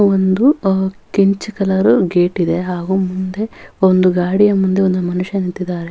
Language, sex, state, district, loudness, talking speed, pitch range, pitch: Kannada, female, Karnataka, Bellary, -15 LUFS, 120 wpm, 180-195 Hz, 190 Hz